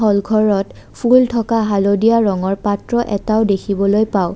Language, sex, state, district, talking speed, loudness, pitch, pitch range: Assamese, female, Assam, Kamrup Metropolitan, 110 wpm, -16 LUFS, 205 Hz, 200-225 Hz